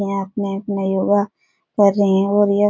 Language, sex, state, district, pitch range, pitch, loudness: Hindi, female, Bihar, Supaul, 195-205 Hz, 200 Hz, -18 LUFS